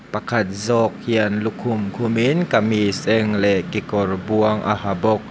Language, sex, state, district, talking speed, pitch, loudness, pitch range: Mizo, male, Mizoram, Aizawl, 160 wpm, 110 Hz, -20 LUFS, 100-115 Hz